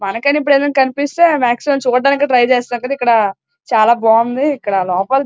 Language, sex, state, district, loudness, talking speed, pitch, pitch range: Telugu, female, Andhra Pradesh, Srikakulam, -14 LUFS, 115 wpm, 255 Hz, 230-285 Hz